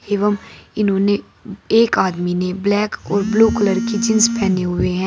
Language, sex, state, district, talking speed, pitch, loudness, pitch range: Hindi, female, Uttar Pradesh, Saharanpur, 165 wpm, 205 Hz, -17 LUFS, 190-220 Hz